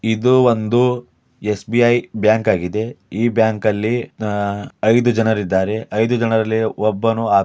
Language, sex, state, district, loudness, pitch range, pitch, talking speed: Kannada, male, Karnataka, Dharwad, -17 LUFS, 105-120 Hz, 110 Hz, 120 wpm